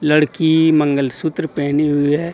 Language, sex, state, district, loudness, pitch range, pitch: Hindi, male, Jharkhand, Deoghar, -16 LUFS, 145-160 Hz, 150 Hz